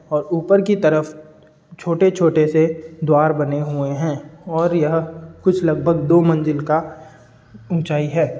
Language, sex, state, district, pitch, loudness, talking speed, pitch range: Hindi, male, Uttar Pradesh, Budaun, 160 Hz, -18 LUFS, 145 wpm, 155-170 Hz